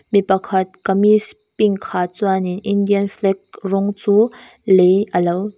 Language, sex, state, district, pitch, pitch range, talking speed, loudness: Mizo, female, Mizoram, Aizawl, 200 Hz, 190-210 Hz, 150 wpm, -17 LUFS